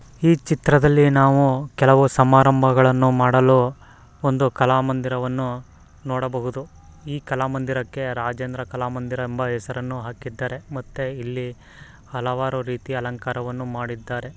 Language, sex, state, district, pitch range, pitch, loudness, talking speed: Kannada, male, Karnataka, Mysore, 125-135 Hz, 130 Hz, -20 LUFS, 100 wpm